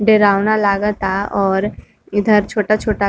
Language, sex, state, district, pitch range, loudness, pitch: Bhojpuri, female, Uttar Pradesh, Varanasi, 200-215 Hz, -16 LUFS, 205 Hz